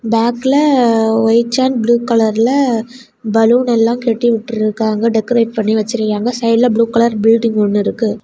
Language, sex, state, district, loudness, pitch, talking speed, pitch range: Tamil, female, Tamil Nadu, Kanyakumari, -13 LUFS, 230 Hz, 130 wpm, 220-240 Hz